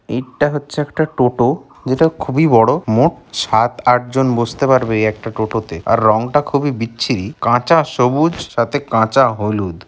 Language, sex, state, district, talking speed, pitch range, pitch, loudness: Bengali, male, West Bengal, Kolkata, 145 wpm, 115-145 Hz, 125 Hz, -16 LUFS